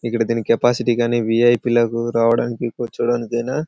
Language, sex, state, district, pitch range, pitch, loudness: Telugu, male, Telangana, Karimnagar, 115-120 Hz, 120 Hz, -18 LUFS